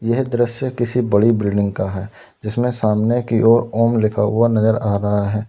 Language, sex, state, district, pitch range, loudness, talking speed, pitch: Hindi, male, Uttar Pradesh, Lalitpur, 105-120 Hz, -17 LUFS, 195 wpm, 110 Hz